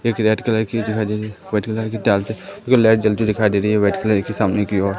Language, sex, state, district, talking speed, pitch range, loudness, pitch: Hindi, male, Madhya Pradesh, Katni, 325 wpm, 105-110 Hz, -18 LUFS, 110 Hz